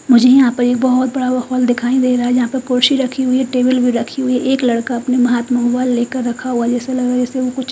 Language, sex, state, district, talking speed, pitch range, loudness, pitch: Hindi, female, Bihar, Katihar, 270 wpm, 245-255 Hz, -15 LUFS, 250 Hz